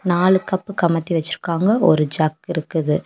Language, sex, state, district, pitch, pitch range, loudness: Tamil, female, Tamil Nadu, Kanyakumari, 170 Hz, 160-185 Hz, -19 LUFS